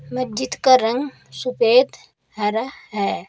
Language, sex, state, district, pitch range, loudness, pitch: Hindi, female, Uttar Pradesh, Saharanpur, 225-290 Hz, -20 LUFS, 255 Hz